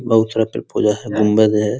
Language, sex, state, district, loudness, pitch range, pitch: Hindi, male, Bihar, Muzaffarpur, -17 LUFS, 105-110 Hz, 110 Hz